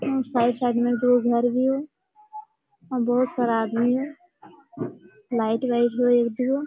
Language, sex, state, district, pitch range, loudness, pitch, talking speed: Hindi, female, Jharkhand, Jamtara, 240-270 Hz, -23 LUFS, 245 Hz, 145 wpm